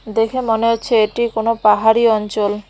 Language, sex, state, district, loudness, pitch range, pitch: Bengali, female, West Bengal, Cooch Behar, -16 LUFS, 215-230 Hz, 225 Hz